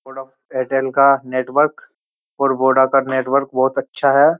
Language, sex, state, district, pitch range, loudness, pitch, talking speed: Hindi, male, Uttar Pradesh, Jyotiba Phule Nagar, 130-140 Hz, -17 LUFS, 135 Hz, 150 wpm